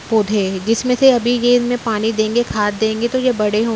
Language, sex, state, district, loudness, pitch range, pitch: Hindi, female, Uttar Pradesh, Jyotiba Phule Nagar, -16 LUFS, 215-245 Hz, 225 Hz